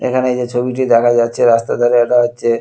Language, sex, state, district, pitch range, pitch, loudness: Bengali, male, West Bengal, Kolkata, 120-125 Hz, 120 Hz, -14 LUFS